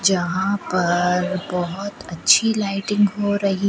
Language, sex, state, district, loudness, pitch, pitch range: Hindi, female, Rajasthan, Bikaner, -20 LUFS, 195 Hz, 180-200 Hz